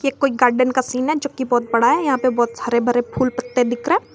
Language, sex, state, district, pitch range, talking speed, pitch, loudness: Hindi, female, Jharkhand, Garhwa, 245-270 Hz, 260 wpm, 255 Hz, -18 LUFS